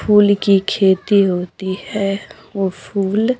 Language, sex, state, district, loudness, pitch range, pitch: Hindi, female, Bihar, Patna, -17 LUFS, 190-205 Hz, 195 Hz